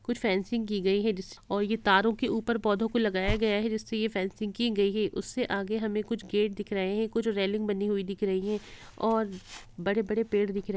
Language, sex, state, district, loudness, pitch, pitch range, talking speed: Hindi, female, Bihar, Gopalganj, -29 LUFS, 210 Hz, 200-225 Hz, 235 wpm